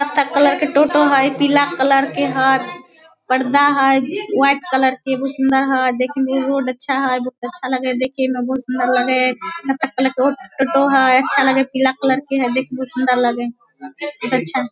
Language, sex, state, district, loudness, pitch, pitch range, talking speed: Maithili, female, Bihar, Samastipur, -16 LUFS, 265 Hz, 255-275 Hz, 210 wpm